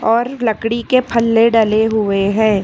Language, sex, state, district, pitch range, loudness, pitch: Hindi, female, Karnataka, Bangalore, 215-235 Hz, -15 LUFS, 225 Hz